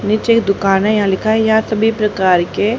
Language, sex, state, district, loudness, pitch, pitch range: Hindi, female, Haryana, Charkhi Dadri, -14 LUFS, 210 Hz, 195-220 Hz